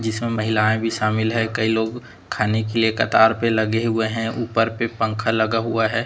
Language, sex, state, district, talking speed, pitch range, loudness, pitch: Hindi, male, Chhattisgarh, Raipur, 210 wpm, 110-115 Hz, -20 LUFS, 110 Hz